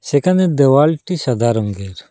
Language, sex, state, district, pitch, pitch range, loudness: Bengali, male, Assam, Hailakandi, 140 Hz, 115-160 Hz, -15 LUFS